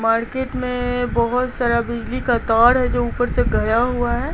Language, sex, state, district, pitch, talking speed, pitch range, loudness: Hindi, female, Bihar, Patna, 245 Hz, 195 wpm, 235-250 Hz, -19 LUFS